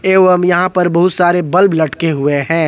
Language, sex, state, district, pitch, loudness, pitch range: Hindi, male, Jharkhand, Ranchi, 175 Hz, -12 LUFS, 160-180 Hz